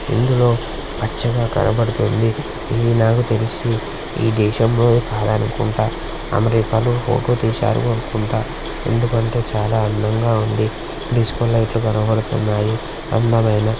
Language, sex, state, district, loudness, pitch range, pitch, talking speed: Telugu, male, Andhra Pradesh, Srikakulam, -18 LUFS, 110-120 Hz, 115 Hz, 85 wpm